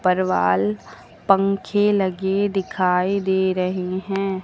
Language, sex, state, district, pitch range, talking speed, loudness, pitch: Hindi, female, Uttar Pradesh, Lucknow, 185-195 Hz, 110 wpm, -20 LUFS, 190 Hz